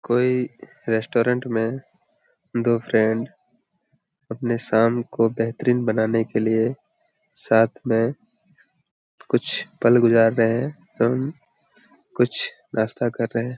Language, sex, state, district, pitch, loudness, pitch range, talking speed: Hindi, male, Jharkhand, Jamtara, 115 Hz, -22 LUFS, 115-125 Hz, 110 wpm